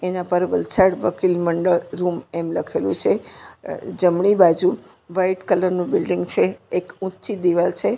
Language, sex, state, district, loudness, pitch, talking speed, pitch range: Gujarati, female, Gujarat, Valsad, -20 LUFS, 180 Hz, 160 wpm, 175-185 Hz